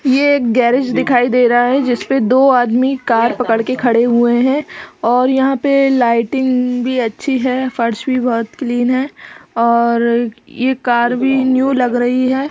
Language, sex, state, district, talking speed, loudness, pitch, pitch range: Hindi, female, Uttar Pradesh, Budaun, 175 wpm, -14 LUFS, 250 Hz, 240-265 Hz